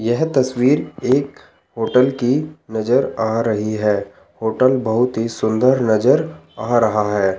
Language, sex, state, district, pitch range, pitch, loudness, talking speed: Hindi, male, Chandigarh, Chandigarh, 110-130 Hz, 115 Hz, -18 LUFS, 140 wpm